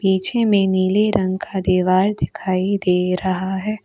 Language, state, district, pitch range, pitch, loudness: Hindi, Arunachal Pradesh, Papum Pare, 185-200 Hz, 190 Hz, -18 LUFS